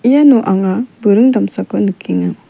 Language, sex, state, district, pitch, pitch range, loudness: Garo, female, Meghalaya, West Garo Hills, 205 Hz, 190-245 Hz, -13 LUFS